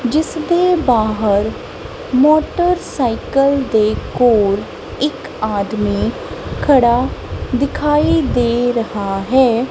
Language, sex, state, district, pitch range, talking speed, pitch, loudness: Punjabi, female, Punjab, Kapurthala, 215-295 Hz, 75 wpm, 250 Hz, -16 LUFS